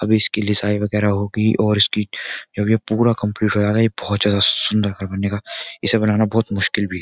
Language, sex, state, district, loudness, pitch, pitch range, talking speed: Hindi, male, Uttar Pradesh, Jyotiba Phule Nagar, -18 LUFS, 105 Hz, 100-110 Hz, 215 wpm